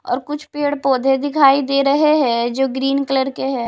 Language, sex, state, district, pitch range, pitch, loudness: Hindi, female, Himachal Pradesh, Shimla, 265-285 Hz, 275 Hz, -17 LUFS